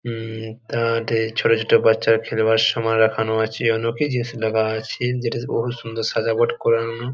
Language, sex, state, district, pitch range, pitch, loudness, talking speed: Bengali, male, West Bengal, Jalpaiguri, 110-115 Hz, 115 Hz, -20 LUFS, 160 wpm